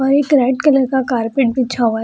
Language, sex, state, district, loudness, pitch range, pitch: Hindi, female, Bihar, Samastipur, -15 LUFS, 240-270 Hz, 260 Hz